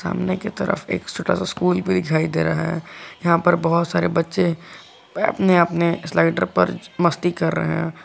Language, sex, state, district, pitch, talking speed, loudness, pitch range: Hindi, male, Jharkhand, Garhwa, 170 Hz, 185 wpm, -20 LUFS, 155-180 Hz